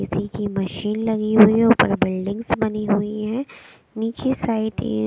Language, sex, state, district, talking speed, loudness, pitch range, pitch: Hindi, female, Bihar, West Champaran, 165 wpm, -20 LUFS, 205-225 Hz, 215 Hz